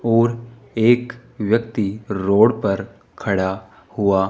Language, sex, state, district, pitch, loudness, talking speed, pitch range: Hindi, male, Rajasthan, Jaipur, 110 Hz, -19 LUFS, 95 wpm, 100-115 Hz